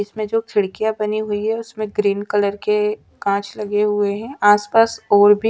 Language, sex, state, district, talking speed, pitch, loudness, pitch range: Hindi, female, Maharashtra, Gondia, 185 wpm, 210 Hz, -19 LUFS, 205-215 Hz